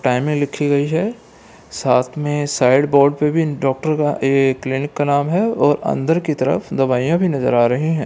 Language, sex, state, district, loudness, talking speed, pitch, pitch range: Hindi, male, Bihar, Gopalganj, -17 LUFS, 200 wpm, 145 Hz, 135-155 Hz